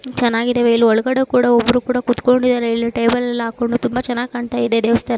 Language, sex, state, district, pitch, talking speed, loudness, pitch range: Kannada, female, Karnataka, Dharwad, 240 Hz, 160 wpm, -16 LUFS, 235-250 Hz